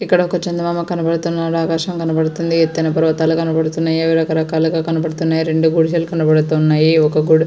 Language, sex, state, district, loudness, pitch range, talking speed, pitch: Telugu, female, Andhra Pradesh, Srikakulam, -16 LUFS, 160-165 Hz, 135 wpm, 160 Hz